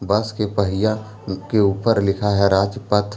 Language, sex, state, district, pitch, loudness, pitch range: Hindi, male, Jharkhand, Deoghar, 105 Hz, -20 LUFS, 100-110 Hz